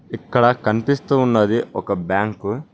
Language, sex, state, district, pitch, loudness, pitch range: Telugu, male, Telangana, Mahabubabad, 115 Hz, -19 LUFS, 105-125 Hz